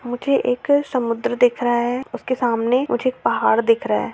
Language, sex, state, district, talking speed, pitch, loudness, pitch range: Hindi, female, Chhattisgarh, Rajnandgaon, 190 wpm, 245 Hz, -19 LUFS, 235-255 Hz